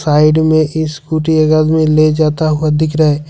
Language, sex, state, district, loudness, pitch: Hindi, male, Jharkhand, Ranchi, -12 LUFS, 155 Hz